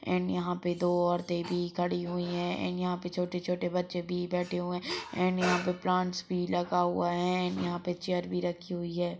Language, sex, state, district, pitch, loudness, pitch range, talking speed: Hindi, male, Chhattisgarh, Kabirdham, 180 Hz, -31 LUFS, 175-180 Hz, 220 wpm